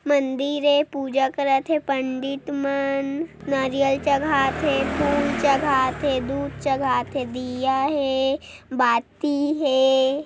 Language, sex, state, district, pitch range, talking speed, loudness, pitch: Hindi, female, Chhattisgarh, Korba, 265-285 Hz, 115 wpm, -22 LUFS, 275 Hz